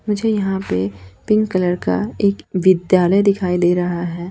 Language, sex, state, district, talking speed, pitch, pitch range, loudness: Hindi, female, Chhattisgarh, Raipur, 165 wpm, 185 Hz, 175-200 Hz, -17 LUFS